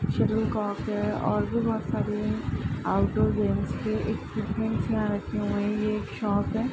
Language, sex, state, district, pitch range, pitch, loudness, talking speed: Hindi, female, Bihar, Bhagalpur, 205-225 Hz, 215 Hz, -28 LUFS, 180 wpm